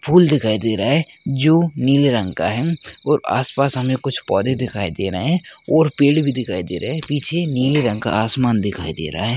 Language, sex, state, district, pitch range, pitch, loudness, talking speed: Hindi, male, Rajasthan, Churu, 110-150 Hz, 130 Hz, -18 LUFS, 220 wpm